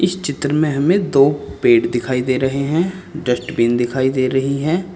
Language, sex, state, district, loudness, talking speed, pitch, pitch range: Hindi, male, Uttar Pradesh, Saharanpur, -17 LUFS, 180 wpm, 140 Hz, 130-170 Hz